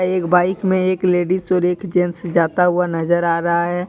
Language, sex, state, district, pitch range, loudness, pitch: Hindi, male, Jharkhand, Deoghar, 175-185 Hz, -17 LUFS, 180 Hz